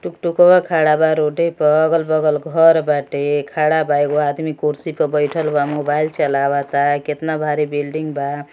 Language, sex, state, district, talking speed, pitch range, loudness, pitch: Bhojpuri, male, Uttar Pradesh, Gorakhpur, 160 wpm, 145-160 Hz, -17 LUFS, 150 Hz